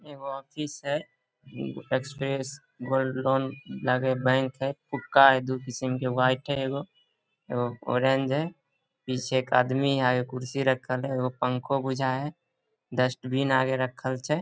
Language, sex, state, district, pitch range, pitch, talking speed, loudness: Maithili, male, Bihar, Samastipur, 130-140 Hz, 130 Hz, 150 wpm, -27 LUFS